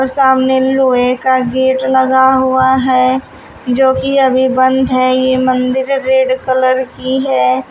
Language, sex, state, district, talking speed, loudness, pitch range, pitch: Hindi, female, Uttar Pradesh, Shamli, 140 wpm, -12 LUFS, 255-265 Hz, 260 Hz